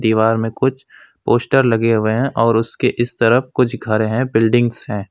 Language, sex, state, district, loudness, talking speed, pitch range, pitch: Hindi, male, West Bengal, Alipurduar, -16 LUFS, 190 wpm, 110-125 Hz, 115 Hz